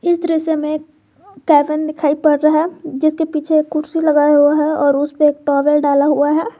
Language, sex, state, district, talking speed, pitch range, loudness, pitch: Hindi, female, Jharkhand, Garhwa, 200 wpm, 295-315 Hz, -15 LUFS, 305 Hz